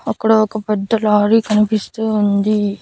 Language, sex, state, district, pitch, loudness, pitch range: Telugu, female, Andhra Pradesh, Annamaya, 215 Hz, -16 LUFS, 210-220 Hz